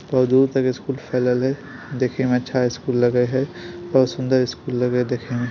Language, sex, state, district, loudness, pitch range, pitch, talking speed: Maithili, male, Bihar, Bhagalpur, -21 LUFS, 125-135 Hz, 130 Hz, 195 wpm